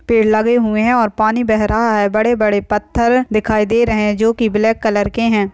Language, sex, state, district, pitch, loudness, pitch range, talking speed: Hindi, female, West Bengal, Dakshin Dinajpur, 220 Hz, -15 LUFS, 210-230 Hz, 225 wpm